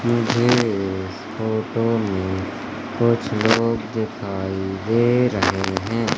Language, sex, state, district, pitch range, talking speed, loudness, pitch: Hindi, male, Madhya Pradesh, Katni, 95-115 Hz, 95 wpm, -21 LUFS, 110 Hz